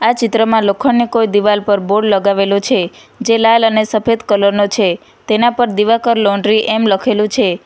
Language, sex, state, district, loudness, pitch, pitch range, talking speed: Gujarati, female, Gujarat, Valsad, -13 LUFS, 215 Hz, 200-230 Hz, 180 wpm